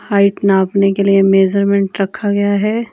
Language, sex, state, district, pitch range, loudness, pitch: Hindi, female, Himachal Pradesh, Shimla, 195-205 Hz, -13 LUFS, 200 Hz